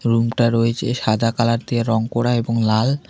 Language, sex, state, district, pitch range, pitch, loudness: Bengali, male, West Bengal, Alipurduar, 115-120 Hz, 115 Hz, -19 LUFS